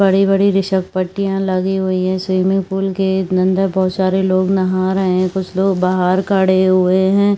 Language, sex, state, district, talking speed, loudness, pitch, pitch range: Chhattisgarhi, female, Chhattisgarh, Rajnandgaon, 180 wpm, -15 LUFS, 190 Hz, 185-195 Hz